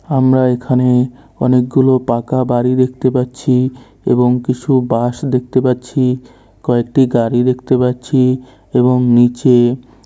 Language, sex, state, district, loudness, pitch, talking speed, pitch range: Bengali, male, West Bengal, Kolkata, -14 LUFS, 125 Hz, 105 wpm, 125-130 Hz